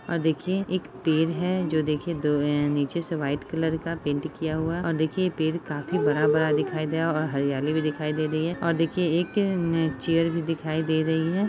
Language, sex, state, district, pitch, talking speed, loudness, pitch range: Hindi, female, Bihar, Madhepura, 160 Hz, 215 wpm, -26 LUFS, 150-170 Hz